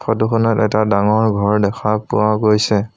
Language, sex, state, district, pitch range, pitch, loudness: Assamese, male, Assam, Sonitpur, 105-110 Hz, 110 Hz, -16 LUFS